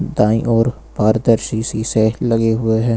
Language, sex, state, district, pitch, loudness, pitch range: Hindi, male, Uttar Pradesh, Lucknow, 110 Hz, -16 LUFS, 110-115 Hz